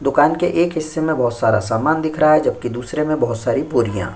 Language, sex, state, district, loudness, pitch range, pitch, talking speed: Hindi, male, Uttar Pradesh, Jyotiba Phule Nagar, -18 LUFS, 120-155 Hz, 145 Hz, 245 wpm